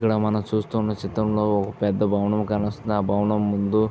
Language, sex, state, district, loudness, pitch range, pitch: Telugu, male, Andhra Pradesh, Visakhapatnam, -23 LUFS, 100-105 Hz, 105 Hz